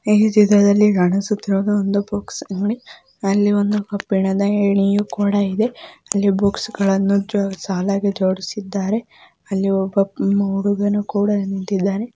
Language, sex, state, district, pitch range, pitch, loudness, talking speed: Kannada, female, Karnataka, Mysore, 195-205 Hz, 200 Hz, -18 LUFS, 115 wpm